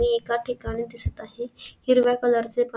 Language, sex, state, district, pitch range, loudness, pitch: Marathi, female, Maharashtra, Sindhudurg, 235-245 Hz, -24 LUFS, 240 Hz